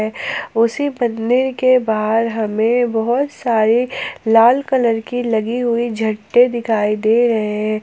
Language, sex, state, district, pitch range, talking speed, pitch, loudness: Hindi, female, Jharkhand, Palamu, 220-245 Hz, 130 wpm, 230 Hz, -16 LUFS